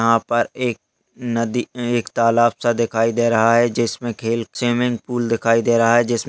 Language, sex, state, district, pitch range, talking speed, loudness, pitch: Hindi, male, Chhattisgarh, Jashpur, 115-120 Hz, 190 wpm, -19 LUFS, 120 Hz